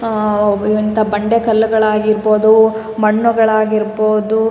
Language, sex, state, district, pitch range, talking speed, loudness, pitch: Kannada, female, Karnataka, Raichur, 215-220 Hz, 145 wpm, -13 LUFS, 215 Hz